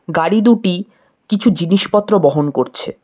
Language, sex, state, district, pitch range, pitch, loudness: Bengali, male, West Bengal, Cooch Behar, 165-215 Hz, 200 Hz, -15 LUFS